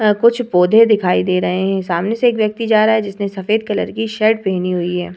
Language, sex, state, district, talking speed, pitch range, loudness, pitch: Hindi, female, Uttar Pradesh, Hamirpur, 255 wpm, 180-220 Hz, -15 LUFS, 210 Hz